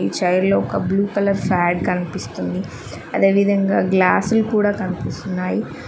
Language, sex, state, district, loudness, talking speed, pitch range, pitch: Telugu, female, Telangana, Mahabubabad, -19 LUFS, 120 wpm, 155-195 Hz, 185 Hz